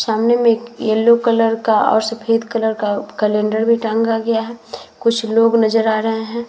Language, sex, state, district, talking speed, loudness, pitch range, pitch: Hindi, female, Uttar Pradesh, Muzaffarnagar, 195 wpm, -16 LUFS, 220-230 Hz, 225 Hz